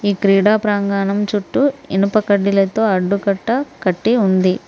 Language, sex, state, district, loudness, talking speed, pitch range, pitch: Telugu, female, Telangana, Mahabubabad, -16 LUFS, 130 wpm, 195-215 Hz, 200 Hz